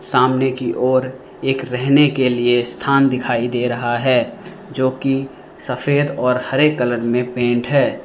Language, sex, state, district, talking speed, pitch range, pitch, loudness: Hindi, male, Arunachal Pradesh, Lower Dibang Valley, 155 wpm, 125-135 Hz, 130 Hz, -17 LUFS